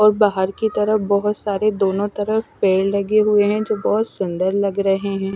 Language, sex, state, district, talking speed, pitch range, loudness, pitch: Hindi, female, Himachal Pradesh, Shimla, 200 wpm, 195-210 Hz, -19 LUFS, 205 Hz